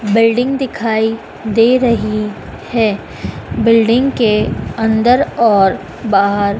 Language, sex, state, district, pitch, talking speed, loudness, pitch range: Hindi, female, Madhya Pradesh, Dhar, 225 Hz, 90 wpm, -14 LUFS, 210-235 Hz